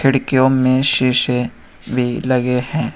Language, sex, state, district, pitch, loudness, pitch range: Hindi, male, Uttar Pradesh, Shamli, 130 Hz, -16 LUFS, 125-130 Hz